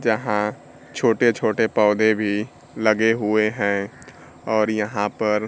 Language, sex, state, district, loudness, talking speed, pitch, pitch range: Hindi, male, Bihar, Kaimur, -21 LUFS, 130 wpm, 110 Hz, 105-110 Hz